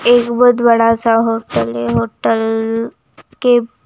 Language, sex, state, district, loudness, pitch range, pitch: Hindi, female, Himachal Pradesh, Shimla, -14 LUFS, 225-240 Hz, 230 Hz